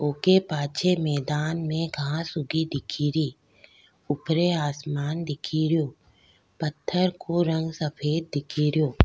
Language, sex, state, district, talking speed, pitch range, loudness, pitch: Rajasthani, female, Rajasthan, Nagaur, 100 wpm, 145-165 Hz, -26 LUFS, 155 Hz